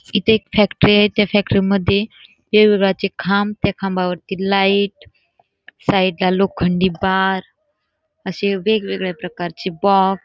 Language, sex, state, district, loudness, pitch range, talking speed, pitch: Marathi, female, Karnataka, Belgaum, -17 LUFS, 190-205 Hz, 100 wpm, 195 Hz